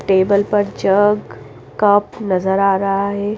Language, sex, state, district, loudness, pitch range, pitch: Hindi, female, Himachal Pradesh, Shimla, -16 LUFS, 190-205 Hz, 200 Hz